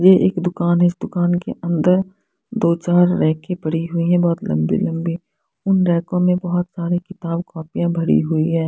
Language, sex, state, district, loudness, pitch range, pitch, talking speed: Hindi, female, Punjab, Fazilka, -19 LUFS, 165-180 Hz, 175 Hz, 185 wpm